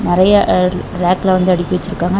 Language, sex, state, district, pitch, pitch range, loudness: Tamil, female, Tamil Nadu, Namakkal, 180 Hz, 180-190 Hz, -14 LUFS